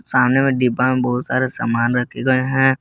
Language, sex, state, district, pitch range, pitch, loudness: Hindi, male, Jharkhand, Garhwa, 125-130 Hz, 130 Hz, -18 LUFS